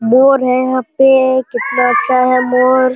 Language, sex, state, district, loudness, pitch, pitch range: Hindi, male, Bihar, Jamui, -12 LUFS, 255 Hz, 250-260 Hz